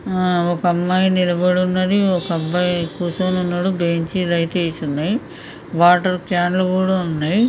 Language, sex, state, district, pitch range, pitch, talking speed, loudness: Telugu, female, Telangana, Karimnagar, 170-185 Hz, 180 Hz, 160 wpm, -18 LUFS